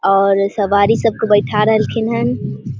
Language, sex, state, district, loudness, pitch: Maithili, female, Bihar, Vaishali, -15 LUFS, 200 Hz